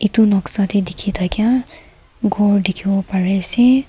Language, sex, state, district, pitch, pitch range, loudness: Nagamese, female, Nagaland, Kohima, 200 Hz, 195-225 Hz, -17 LUFS